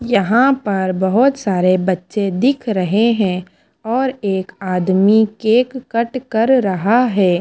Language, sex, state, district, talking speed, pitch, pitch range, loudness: Hindi, female, Bihar, Kaimur, 130 wpm, 215 Hz, 190-245 Hz, -16 LUFS